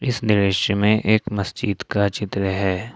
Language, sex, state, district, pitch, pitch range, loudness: Hindi, male, Jharkhand, Ranchi, 100 Hz, 100-110 Hz, -20 LUFS